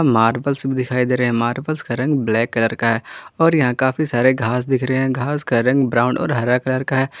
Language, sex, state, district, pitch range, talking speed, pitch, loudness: Hindi, male, Jharkhand, Ranchi, 120-135 Hz, 250 wpm, 130 Hz, -18 LUFS